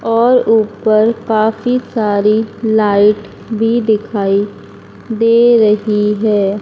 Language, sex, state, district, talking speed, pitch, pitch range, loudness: Hindi, female, Madhya Pradesh, Dhar, 90 wpm, 220 Hz, 210-230 Hz, -13 LUFS